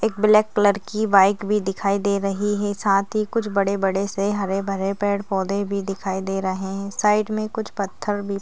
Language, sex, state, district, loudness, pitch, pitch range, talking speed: Hindi, female, Maharashtra, Dhule, -22 LUFS, 200 Hz, 195-210 Hz, 190 wpm